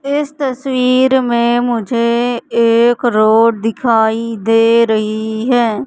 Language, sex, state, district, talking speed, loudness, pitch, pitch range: Hindi, female, Madhya Pradesh, Katni, 100 wpm, -13 LUFS, 235 Hz, 225-245 Hz